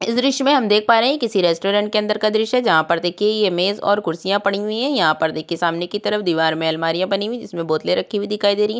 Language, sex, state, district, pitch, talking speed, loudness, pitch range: Hindi, female, Uttarakhand, Tehri Garhwal, 205 Hz, 300 wpm, -18 LUFS, 170-215 Hz